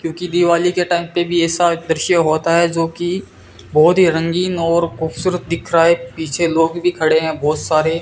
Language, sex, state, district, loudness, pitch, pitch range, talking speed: Hindi, male, Rajasthan, Bikaner, -16 LUFS, 170 Hz, 160-175 Hz, 200 wpm